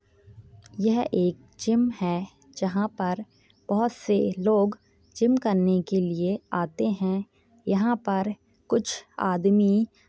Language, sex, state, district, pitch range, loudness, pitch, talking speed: Hindi, female, Chhattisgarh, Jashpur, 180-220 Hz, -26 LUFS, 200 Hz, 115 wpm